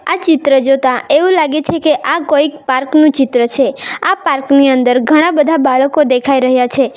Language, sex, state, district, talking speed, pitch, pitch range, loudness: Gujarati, female, Gujarat, Valsad, 200 wpm, 280 Hz, 265-310 Hz, -11 LUFS